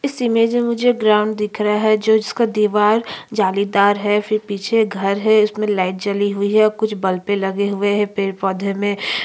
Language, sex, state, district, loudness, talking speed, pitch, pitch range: Hindi, female, Chhattisgarh, Sukma, -17 LUFS, 195 wpm, 210 Hz, 200-215 Hz